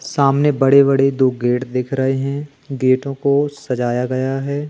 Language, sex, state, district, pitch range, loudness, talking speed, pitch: Hindi, male, Madhya Pradesh, Katni, 130-140 Hz, -17 LUFS, 165 wpm, 135 Hz